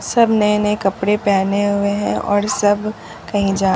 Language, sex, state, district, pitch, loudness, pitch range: Hindi, female, Bihar, Katihar, 205 Hz, -17 LUFS, 200-210 Hz